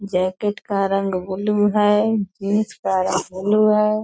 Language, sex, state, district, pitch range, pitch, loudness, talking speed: Hindi, female, Bihar, Purnia, 190-210 Hz, 200 Hz, -20 LUFS, 150 wpm